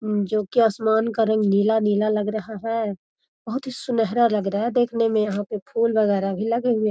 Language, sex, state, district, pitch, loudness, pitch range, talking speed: Magahi, female, Bihar, Gaya, 220 Hz, -22 LUFS, 210-230 Hz, 215 wpm